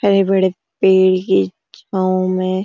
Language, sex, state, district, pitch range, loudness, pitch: Hindi, female, Uttarakhand, Uttarkashi, 185-190 Hz, -16 LUFS, 185 Hz